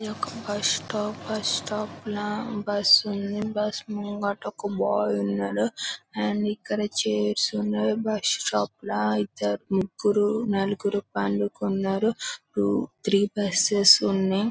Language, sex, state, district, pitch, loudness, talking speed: Telugu, female, Telangana, Karimnagar, 200 Hz, -25 LUFS, 105 wpm